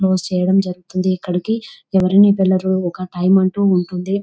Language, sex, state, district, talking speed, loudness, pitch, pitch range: Telugu, female, Telangana, Nalgonda, 130 wpm, -17 LUFS, 185 Hz, 180-195 Hz